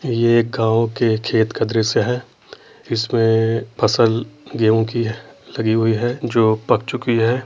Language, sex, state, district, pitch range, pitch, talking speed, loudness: Hindi, male, Uttar Pradesh, Jyotiba Phule Nagar, 110-120 Hz, 115 Hz, 160 wpm, -18 LUFS